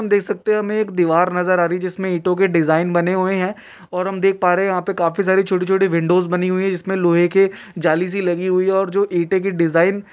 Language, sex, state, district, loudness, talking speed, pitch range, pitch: Hindi, male, Uttar Pradesh, Ghazipur, -18 LUFS, 265 wpm, 175-195 Hz, 185 Hz